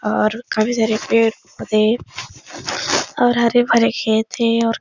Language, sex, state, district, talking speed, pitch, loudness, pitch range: Hindi, female, Uttar Pradesh, Etah, 125 wpm, 230 Hz, -17 LUFS, 220-235 Hz